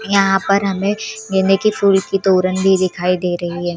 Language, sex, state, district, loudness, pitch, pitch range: Chhattisgarhi, female, Chhattisgarh, Korba, -16 LUFS, 195 Hz, 185-200 Hz